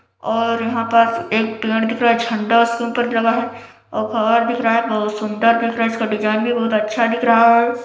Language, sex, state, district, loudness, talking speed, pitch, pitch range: Hindi, male, Chhattisgarh, Balrampur, -17 LUFS, 235 wpm, 230 Hz, 220-235 Hz